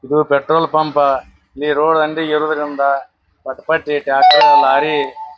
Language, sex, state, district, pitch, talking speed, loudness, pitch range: Kannada, male, Karnataka, Bijapur, 150 Hz, 125 wpm, -14 LUFS, 140-160 Hz